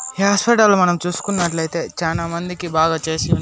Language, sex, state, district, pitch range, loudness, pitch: Telugu, male, Andhra Pradesh, Annamaya, 165-195 Hz, -18 LUFS, 175 Hz